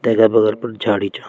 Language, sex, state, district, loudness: Garhwali, male, Uttarakhand, Tehri Garhwal, -16 LUFS